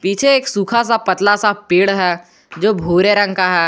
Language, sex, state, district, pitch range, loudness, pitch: Hindi, male, Jharkhand, Garhwa, 180-210 Hz, -14 LUFS, 195 Hz